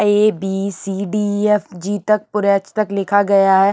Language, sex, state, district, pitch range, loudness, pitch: Hindi, female, Punjab, Pathankot, 195-210 Hz, -17 LUFS, 200 Hz